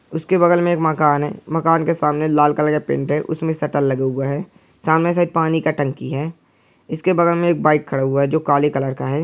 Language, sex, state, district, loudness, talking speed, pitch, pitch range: Angika, male, Bihar, Samastipur, -18 LUFS, 245 wpm, 155 Hz, 145-165 Hz